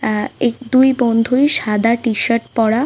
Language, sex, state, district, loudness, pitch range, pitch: Bengali, female, West Bengal, Paschim Medinipur, -15 LUFS, 225-255 Hz, 230 Hz